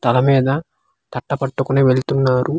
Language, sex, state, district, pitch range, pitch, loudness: Telugu, male, Andhra Pradesh, Manyam, 130-135 Hz, 135 Hz, -17 LUFS